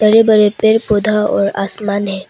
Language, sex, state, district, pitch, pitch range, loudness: Hindi, female, Arunachal Pradesh, Papum Pare, 210 Hz, 200-215 Hz, -13 LUFS